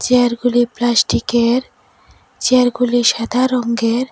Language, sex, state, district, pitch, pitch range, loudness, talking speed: Bengali, female, Assam, Hailakandi, 245 Hz, 235-250 Hz, -15 LUFS, 75 wpm